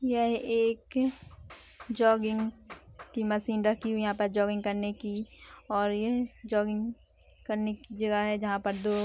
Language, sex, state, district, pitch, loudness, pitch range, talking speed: Hindi, female, Bihar, Kishanganj, 215 Hz, -30 LUFS, 210-230 Hz, 160 wpm